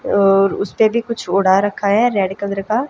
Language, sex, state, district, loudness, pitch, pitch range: Hindi, female, Haryana, Jhajjar, -16 LUFS, 200 Hz, 195-220 Hz